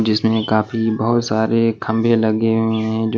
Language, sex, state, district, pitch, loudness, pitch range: Hindi, male, Maharashtra, Washim, 110 Hz, -17 LUFS, 110-115 Hz